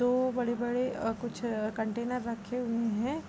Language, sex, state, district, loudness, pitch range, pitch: Hindi, female, Uttar Pradesh, Budaun, -32 LUFS, 225-250 Hz, 240 Hz